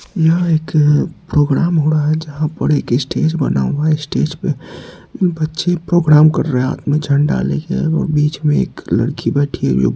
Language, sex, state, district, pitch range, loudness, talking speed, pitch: Hindi, male, Bihar, Madhepura, 145-160 Hz, -15 LUFS, 200 wpm, 150 Hz